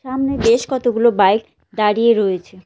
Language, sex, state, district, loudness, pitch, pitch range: Bengali, female, West Bengal, Cooch Behar, -16 LUFS, 225 Hz, 205-240 Hz